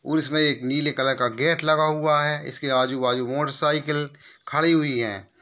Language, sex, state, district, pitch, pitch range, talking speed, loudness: Hindi, male, Bihar, Darbhanga, 145 Hz, 130-155 Hz, 190 wpm, -22 LUFS